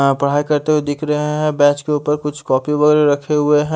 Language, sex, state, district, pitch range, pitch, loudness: Hindi, male, Haryana, Charkhi Dadri, 145-150 Hz, 150 Hz, -16 LUFS